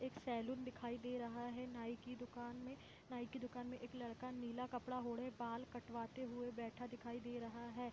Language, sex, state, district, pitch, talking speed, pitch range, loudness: Hindi, female, Jharkhand, Sahebganj, 245 Hz, 205 wpm, 235-250 Hz, -49 LUFS